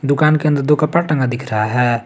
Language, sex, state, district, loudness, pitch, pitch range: Hindi, male, Jharkhand, Garhwa, -16 LUFS, 140 Hz, 120-150 Hz